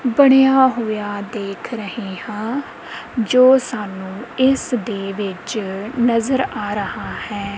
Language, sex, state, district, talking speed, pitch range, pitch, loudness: Punjabi, female, Punjab, Kapurthala, 105 wpm, 205-255 Hz, 220 Hz, -19 LUFS